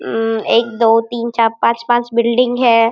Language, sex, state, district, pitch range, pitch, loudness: Hindi, male, Bihar, Araria, 230-240 Hz, 235 Hz, -15 LUFS